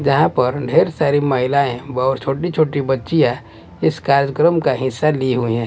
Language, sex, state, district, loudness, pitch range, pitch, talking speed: Hindi, male, Bihar, West Champaran, -17 LUFS, 125-145 Hz, 135 Hz, 170 wpm